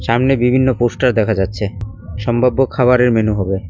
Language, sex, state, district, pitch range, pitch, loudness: Bengali, male, West Bengal, Cooch Behar, 105-125 Hz, 115 Hz, -15 LUFS